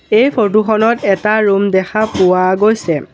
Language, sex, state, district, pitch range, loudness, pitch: Assamese, male, Assam, Sonitpur, 195-220 Hz, -13 LUFS, 215 Hz